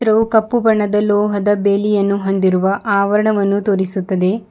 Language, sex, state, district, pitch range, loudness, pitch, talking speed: Kannada, female, Karnataka, Bidar, 200-210 Hz, -15 LUFS, 205 Hz, 105 wpm